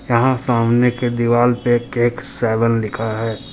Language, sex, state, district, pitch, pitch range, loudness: Hindi, male, Bihar, Muzaffarpur, 120 Hz, 115-120 Hz, -17 LUFS